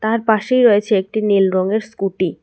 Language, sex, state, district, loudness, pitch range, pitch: Bengali, female, Tripura, West Tripura, -16 LUFS, 195-220 Hz, 210 Hz